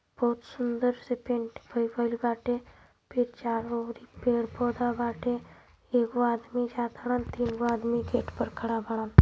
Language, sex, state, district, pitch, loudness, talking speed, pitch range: Hindi, female, Uttar Pradesh, Ghazipur, 240 Hz, -30 LUFS, 125 wpm, 235-245 Hz